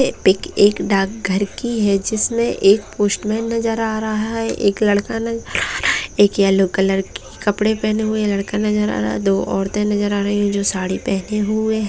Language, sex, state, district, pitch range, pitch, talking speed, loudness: Hindi, female, Bihar, Gaya, 195-220 Hz, 205 Hz, 215 wpm, -18 LUFS